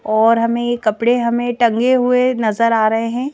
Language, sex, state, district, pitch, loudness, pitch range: Hindi, female, Madhya Pradesh, Bhopal, 235 Hz, -15 LUFS, 225-245 Hz